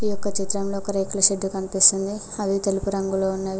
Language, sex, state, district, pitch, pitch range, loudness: Telugu, female, Telangana, Mahabubabad, 195 Hz, 195-200 Hz, -21 LUFS